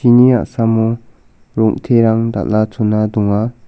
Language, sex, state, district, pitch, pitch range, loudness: Garo, male, Meghalaya, South Garo Hills, 110 Hz, 110-115 Hz, -14 LUFS